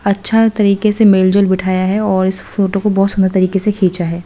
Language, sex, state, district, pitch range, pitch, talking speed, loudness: Hindi, female, Delhi, New Delhi, 185-205 Hz, 195 Hz, 225 wpm, -13 LUFS